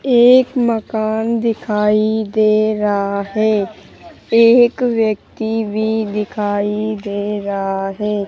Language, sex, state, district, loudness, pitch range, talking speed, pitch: Hindi, male, Rajasthan, Jaipur, -16 LUFS, 205-225 Hz, 95 wpm, 215 Hz